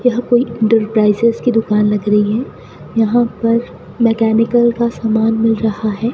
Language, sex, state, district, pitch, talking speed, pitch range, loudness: Hindi, female, Rajasthan, Bikaner, 225 Hz, 155 wpm, 210-235 Hz, -14 LUFS